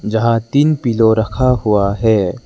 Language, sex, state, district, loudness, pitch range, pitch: Hindi, male, Arunachal Pradesh, Lower Dibang Valley, -14 LUFS, 110-125 Hz, 115 Hz